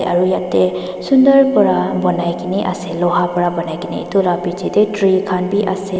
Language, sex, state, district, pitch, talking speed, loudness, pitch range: Nagamese, female, Nagaland, Dimapur, 180 Hz, 190 wpm, -16 LUFS, 175-195 Hz